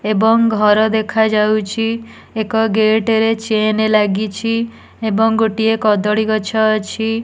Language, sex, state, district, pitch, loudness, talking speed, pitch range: Odia, female, Odisha, Nuapada, 220 Hz, -15 LUFS, 110 wpm, 215-225 Hz